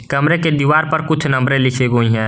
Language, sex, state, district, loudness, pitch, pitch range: Hindi, male, Jharkhand, Garhwa, -15 LUFS, 140 Hz, 125-155 Hz